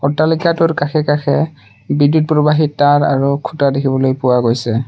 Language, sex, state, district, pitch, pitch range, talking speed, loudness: Assamese, male, Assam, Sonitpur, 145 Hz, 130-155 Hz, 135 wpm, -14 LUFS